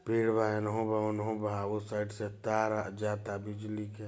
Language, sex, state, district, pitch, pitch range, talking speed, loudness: Bhojpuri, male, Bihar, Gopalganj, 105 Hz, 105-110 Hz, 190 wpm, -34 LUFS